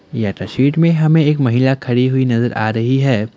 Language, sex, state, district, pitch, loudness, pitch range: Hindi, male, Assam, Kamrup Metropolitan, 125 Hz, -15 LUFS, 115-135 Hz